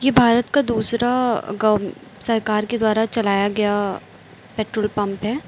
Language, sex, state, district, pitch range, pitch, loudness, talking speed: Hindi, female, Uttar Pradesh, Lucknow, 210-235 Hz, 220 Hz, -20 LUFS, 130 wpm